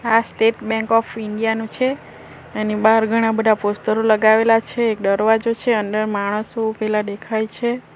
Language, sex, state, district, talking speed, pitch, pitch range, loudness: Gujarati, female, Gujarat, Valsad, 160 wpm, 220 Hz, 215-225 Hz, -18 LUFS